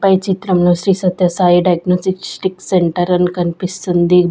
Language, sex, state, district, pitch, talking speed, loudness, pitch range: Telugu, female, Andhra Pradesh, Sri Satya Sai, 180 Hz, 125 wpm, -15 LUFS, 175-185 Hz